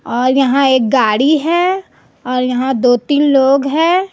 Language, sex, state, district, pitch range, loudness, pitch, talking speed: Hindi, female, Chhattisgarh, Raipur, 255-310 Hz, -13 LUFS, 270 Hz, 160 wpm